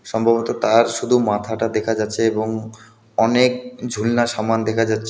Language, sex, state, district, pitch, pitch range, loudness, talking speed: Bengali, male, West Bengal, Alipurduar, 115 Hz, 110-115 Hz, -19 LUFS, 155 wpm